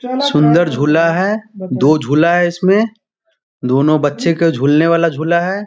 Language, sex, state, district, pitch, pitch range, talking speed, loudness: Hindi, male, Bihar, Sitamarhi, 170 Hz, 150-195 Hz, 150 wpm, -14 LUFS